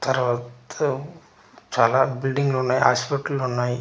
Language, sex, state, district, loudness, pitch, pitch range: Telugu, male, Andhra Pradesh, Manyam, -22 LUFS, 130 Hz, 125-140 Hz